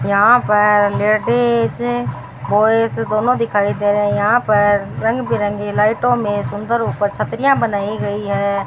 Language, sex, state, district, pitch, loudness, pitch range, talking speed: Hindi, female, Rajasthan, Bikaner, 210 Hz, -16 LUFS, 205-230 Hz, 145 wpm